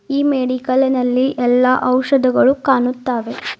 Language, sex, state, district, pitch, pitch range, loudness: Kannada, female, Karnataka, Bidar, 255 Hz, 250-270 Hz, -16 LUFS